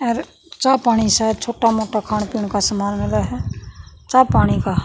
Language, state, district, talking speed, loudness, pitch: Haryanvi, Haryana, Rohtak, 200 wpm, -18 LUFS, 215 Hz